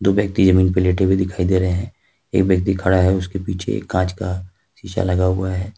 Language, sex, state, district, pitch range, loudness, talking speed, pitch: Hindi, male, Jharkhand, Ranchi, 90-95 Hz, -19 LUFS, 240 wpm, 95 Hz